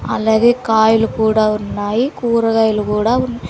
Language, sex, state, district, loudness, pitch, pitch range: Telugu, female, Andhra Pradesh, Sri Satya Sai, -15 LUFS, 220 Hz, 220-235 Hz